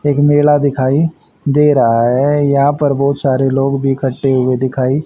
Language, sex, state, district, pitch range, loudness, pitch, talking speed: Hindi, male, Haryana, Jhajjar, 130-145 Hz, -13 LUFS, 140 Hz, 180 wpm